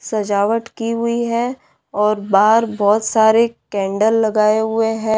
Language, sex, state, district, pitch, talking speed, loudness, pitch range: Hindi, female, Bihar, Madhepura, 220 Hz, 140 wpm, -16 LUFS, 210-230 Hz